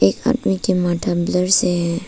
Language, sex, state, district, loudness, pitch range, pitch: Hindi, female, Arunachal Pradesh, Papum Pare, -18 LUFS, 175-190 Hz, 180 Hz